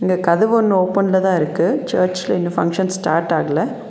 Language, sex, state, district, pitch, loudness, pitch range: Tamil, female, Tamil Nadu, Nilgiris, 185 Hz, -17 LUFS, 170-190 Hz